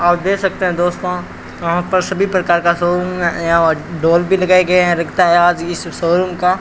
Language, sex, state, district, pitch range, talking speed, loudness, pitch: Hindi, male, Rajasthan, Bikaner, 170-185 Hz, 220 wpm, -15 LUFS, 175 Hz